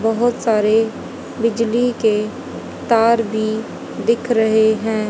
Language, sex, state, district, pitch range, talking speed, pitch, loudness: Hindi, female, Haryana, Jhajjar, 220-230 Hz, 105 wpm, 225 Hz, -17 LUFS